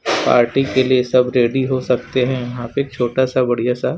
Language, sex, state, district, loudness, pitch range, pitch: Hindi, male, Chhattisgarh, Raipur, -17 LUFS, 120-130 Hz, 125 Hz